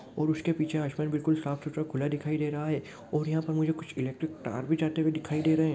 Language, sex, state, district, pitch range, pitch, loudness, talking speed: Hindi, male, Rajasthan, Churu, 150-160 Hz, 155 Hz, -31 LUFS, 270 wpm